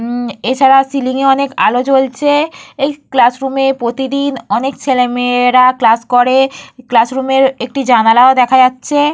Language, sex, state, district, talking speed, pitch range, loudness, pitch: Bengali, female, Jharkhand, Jamtara, 125 wpm, 245-270 Hz, -12 LUFS, 260 Hz